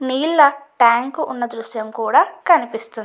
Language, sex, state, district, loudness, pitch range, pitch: Telugu, female, Andhra Pradesh, Guntur, -17 LUFS, 225-285 Hz, 240 Hz